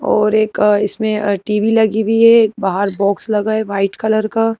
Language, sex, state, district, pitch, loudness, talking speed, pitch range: Hindi, female, Madhya Pradesh, Bhopal, 215 Hz, -14 LUFS, 195 wpm, 205-220 Hz